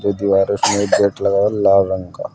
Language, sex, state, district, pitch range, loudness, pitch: Hindi, male, Uttar Pradesh, Saharanpur, 95-100 Hz, -16 LUFS, 100 Hz